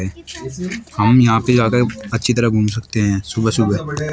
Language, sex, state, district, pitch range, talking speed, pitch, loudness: Hindi, male, Uttar Pradesh, Shamli, 110-125 Hz, 160 wpm, 115 Hz, -17 LUFS